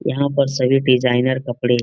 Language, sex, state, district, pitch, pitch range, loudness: Hindi, male, Bihar, Lakhisarai, 130 Hz, 125-135 Hz, -17 LUFS